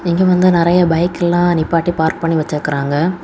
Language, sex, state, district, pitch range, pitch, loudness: Tamil, female, Tamil Nadu, Kanyakumari, 160-175 Hz, 170 Hz, -14 LUFS